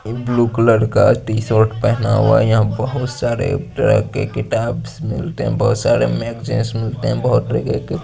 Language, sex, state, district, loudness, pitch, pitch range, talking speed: Hindi, male, Chandigarh, Chandigarh, -17 LUFS, 115 Hz, 110-120 Hz, 185 wpm